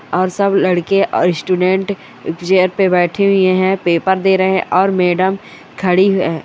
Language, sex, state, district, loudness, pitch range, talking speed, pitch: Hindi, female, Goa, North and South Goa, -14 LUFS, 180-190 Hz, 165 wpm, 185 Hz